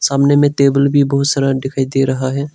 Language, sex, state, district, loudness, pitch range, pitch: Hindi, male, Arunachal Pradesh, Longding, -14 LUFS, 135-140 Hz, 140 Hz